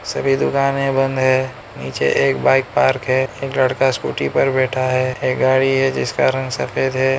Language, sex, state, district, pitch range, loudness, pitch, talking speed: Hindi, male, Arunachal Pradesh, Lower Dibang Valley, 125-135 Hz, -17 LUFS, 130 Hz, 185 wpm